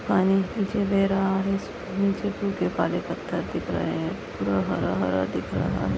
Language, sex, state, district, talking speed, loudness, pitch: Hindi, female, Maharashtra, Pune, 180 wpm, -26 LUFS, 195 Hz